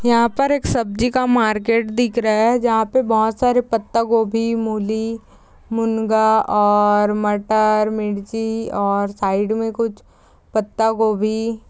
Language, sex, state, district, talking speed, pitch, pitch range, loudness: Hindi, female, Andhra Pradesh, Chittoor, 135 wpm, 220 Hz, 215-230 Hz, -18 LUFS